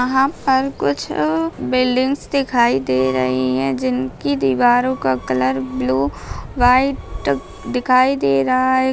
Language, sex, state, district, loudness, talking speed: Hindi, female, Bihar, Bhagalpur, -18 LUFS, 120 wpm